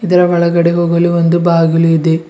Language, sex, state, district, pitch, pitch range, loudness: Kannada, male, Karnataka, Bidar, 170 Hz, 165-175 Hz, -11 LUFS